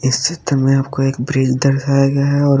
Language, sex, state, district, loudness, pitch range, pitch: Hindi, female, Haryana, Charkhi Dadri, -15 LUFS, 135-140 Hz, 135 Hz